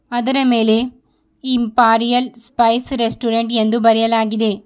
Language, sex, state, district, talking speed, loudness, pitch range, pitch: Kannada, female, Karnataka, Bidar, 90 wpm, -15 LUFS, 225-245 Hz, 230 Hz